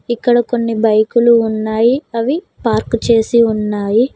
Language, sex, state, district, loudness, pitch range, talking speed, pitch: Telugu, female, Telangana, Mahabubabad, -14 LUFS, 220-240 Hz, 115 wpm, 230 Hz